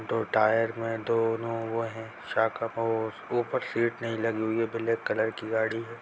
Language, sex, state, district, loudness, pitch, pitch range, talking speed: Hindi, female, Bihar, Darbhanga, -29 LUFS, 115 Hz, 110-115 Hz, 180 wpm